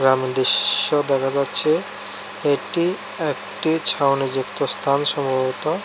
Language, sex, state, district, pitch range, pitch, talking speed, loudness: Bengali, male, Tripura, West Tripura, 135-155 Hz, 140 Hz, 90 wpm, -18 LUFS